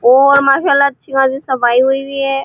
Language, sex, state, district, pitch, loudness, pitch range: Hindi, female, Uttar Pradesh, Muzaffarnagar, 270 Hz, -12 LUFS, 265-275 Hz